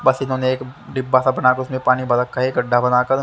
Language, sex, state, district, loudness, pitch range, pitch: Hindi, male, Haryana, Charkhi Dadri, -18 LUFS, 125-130 Hz, 130 Hz